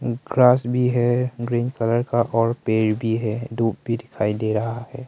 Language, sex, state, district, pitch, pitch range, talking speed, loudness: Hindi, male, Arunachal Pradesh, Longding, 120 Hz, 115-120 Hz, 190 wpm, -21 LUFS